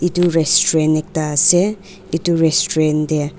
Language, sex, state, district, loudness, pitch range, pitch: Nagamese, female, Nagaland, Dimapur, -15 LUFS, 155-175 Hz, 165 Hz